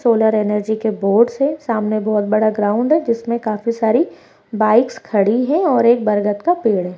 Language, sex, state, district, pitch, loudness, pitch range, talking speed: Hindi, female, Bihar, Gaya, 220 Hz, -16 LUFS, 210-235 Hz, 190 wpm